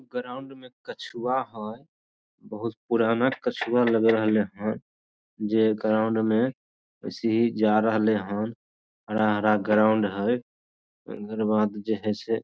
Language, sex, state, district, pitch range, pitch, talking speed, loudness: Maithili, male, Bihar, Samastipur, 105-115 Hz, 110 Hz, 135 wpm, -25 LUFS